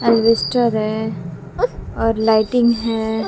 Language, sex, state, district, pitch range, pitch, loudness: Hindi, female, Haryana, Jhajjar, 215-230 Hz, 225 Hz, -18 LUFS